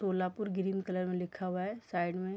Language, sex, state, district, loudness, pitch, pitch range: Hindi, female, Bihar, Sitamarhi, -36 LUFS, 185 Hz, 180-195 Hz